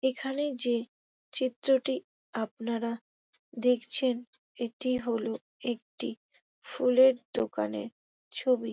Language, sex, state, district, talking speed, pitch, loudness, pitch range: Bengali, female, West Bengal, Jhargram, 85 wpm, 245 Hz, -30 LUFS, 230-260 Hz